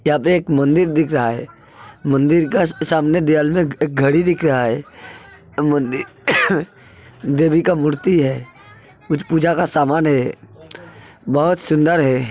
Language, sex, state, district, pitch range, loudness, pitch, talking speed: Hindi, male, Uttar Pradesh, Hamirpur, 140-165 Hz, -17 LUFS, 155 Hz, 145 wpm